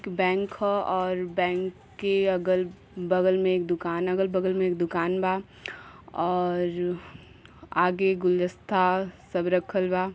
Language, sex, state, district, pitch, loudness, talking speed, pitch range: Bhojpuri, female, Uttar Pradesh, Gorakhpur, 185 Hz, -26 LUFS, 130 wpm, 180-190 Hz